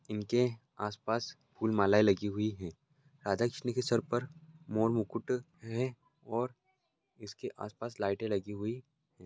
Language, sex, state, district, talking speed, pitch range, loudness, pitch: Hindi, male, Rajasthan, Churu, 140 wpm, 105-125 Hz, -34 LUFS, 115 Hz